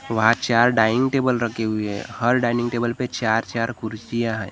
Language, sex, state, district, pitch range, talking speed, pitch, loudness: Hindi, male, Maharashtra, Gondia, 110-120 Hz, 200 wpm, 115 Hz, -21 LUFS